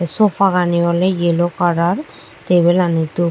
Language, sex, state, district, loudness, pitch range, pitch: Chakma, female, Tripura, Dhalai, -16 LUFS, 170-180 Hz, 175 Hz